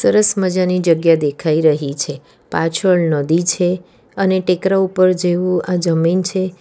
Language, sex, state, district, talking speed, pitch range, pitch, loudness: Gujarati, female, Gujarat, Valsad, 155 wpm, 165-185 Hz, 180 Hz, -16 LUFS